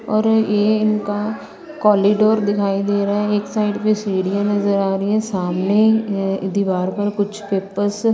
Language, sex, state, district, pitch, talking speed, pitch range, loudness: Hindi, female, Haryana, Rohtak, 205 Hz, 160 wpm, 200-215 Hz, -18 LUFS